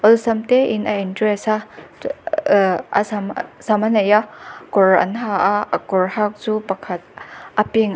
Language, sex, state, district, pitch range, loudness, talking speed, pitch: Mizo, female, Mizoram, Aizawl, 200-220 Hz, -18 LUFS, 165 wpm, 210 Hz